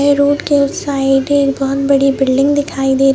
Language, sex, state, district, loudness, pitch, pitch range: Hindi, male, Madhya Pradesh, Bhopal, -13 LUFS, 275 Hz, 270-285 Hz